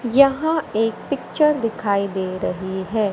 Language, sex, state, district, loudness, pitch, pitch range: Hindi, male, Madhya Pradesh, Katni, -21 LUFS, 220 Hz, 195-275 Hz